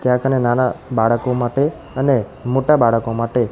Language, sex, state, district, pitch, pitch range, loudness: Gujarati, male, Gujarat, Gandhinagar, 125 Hz, 115-135 Hz, -18 LUFS